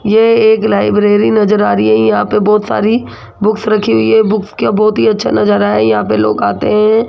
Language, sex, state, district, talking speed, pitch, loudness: Hindi, female, Rajasthan, Jaipur, 230 wpm, 210 Hz, -11 LUFS